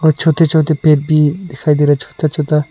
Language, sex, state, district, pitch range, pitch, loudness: Hindi, male, Arunachal Pradesh, Lower Dibang Valley, 150-160 Hz, 155 Hz, -13 LUFS